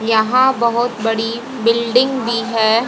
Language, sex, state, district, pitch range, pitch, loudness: Hindi, female, Haryana, Jhajjar, 225-245 Hz, 235 Hz, -16 LUFS